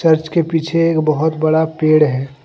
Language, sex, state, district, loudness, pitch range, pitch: Hindi, male, Jharkhand, Deoghar, -15 LUFS, 155-160 Hz, 155 Hz